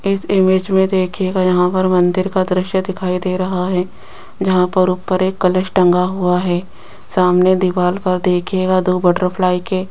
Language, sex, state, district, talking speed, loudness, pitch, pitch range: Hindi, female, Rajasthan, Jaipur, 175 wpm, -16 LUFS, 185 Hz, 180-190 Hz